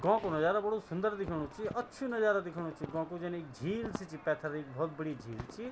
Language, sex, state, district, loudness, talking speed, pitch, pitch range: Garhwali, male, Uttarakhand, Tehri Garhwal, -36 LUFS, 250 wpm, 175 Hz, 155-210 Hz